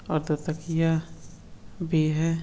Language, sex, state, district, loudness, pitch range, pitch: Hindi, male, Uttar Pradesh, Etah, -27 LUFS, 155-165 Hz, 160 Hz